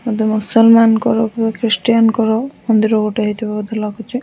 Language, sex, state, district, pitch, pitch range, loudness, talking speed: Odia, female, Odisha, Nuapada, 225 Hz, 215-230 Hz, -14 LUFS, 140 wpm